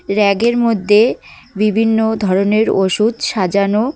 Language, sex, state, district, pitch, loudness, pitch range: Bengali, female, West Bengal, Cooch Behar, 215 Hz, -14 LUFS, 200-225 Hz